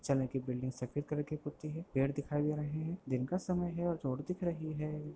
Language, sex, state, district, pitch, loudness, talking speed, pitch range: Hindi, male, Bihar, Lakhisarai, 150 Hz, -37 LUFS, 255 wpm, 135-165 Hz